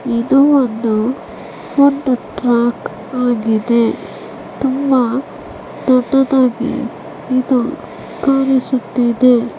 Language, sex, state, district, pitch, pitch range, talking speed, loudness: Kannada, female, Karnataka, Bellary, 255 Hz, 240-270 Hz, 65 wpm, -15 LUFS